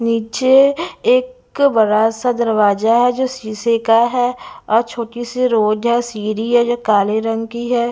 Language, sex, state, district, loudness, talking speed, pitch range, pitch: Hindi, female, Punjab, Pathankot, -16 LUFS, 150 wpm, 225-250 Hz, 235 Hz